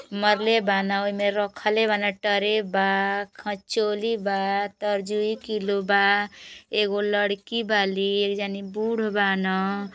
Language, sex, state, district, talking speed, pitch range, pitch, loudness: Bhojpuri, female, Uttar Pradesh, Gorakhpur, 120 wpm, 200-210 Hz, 205 Hz, -24 LUFS